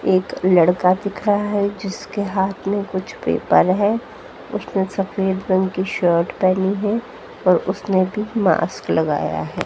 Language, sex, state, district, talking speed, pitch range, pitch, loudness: Hindi, female, Haryana, Jhajjar, 150 wpm, 185-205 Hz, 190 Hz, -19 LUFS